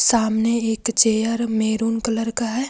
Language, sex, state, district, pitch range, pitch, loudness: Hindi, female, Jharkhand, Deoghar, 225-235 Hz, 225 Hz, -20 LUFS